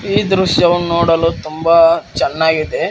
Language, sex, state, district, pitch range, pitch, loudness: Kannada, male, Karnataka, Koppal, 160-175 Hz, 170 Hz, -13 LUFS